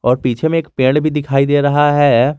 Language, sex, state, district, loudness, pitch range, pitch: Hindi, male, Jharkhand, Garhwa, -14 LUFS, 130-150 Hz, 145 Hz